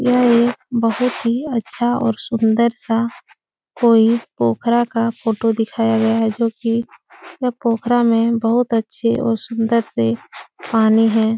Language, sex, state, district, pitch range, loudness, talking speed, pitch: Hindi, female, Uttar Pradesh, Etah, 225-240 Hz, -17 LUFS, 130 wpm, 230 Hz